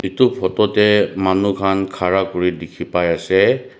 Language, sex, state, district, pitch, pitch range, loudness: Nagamese, male, Nagaland, Dimapur, 95 Hz, 90-100 Hz, -17 LUFS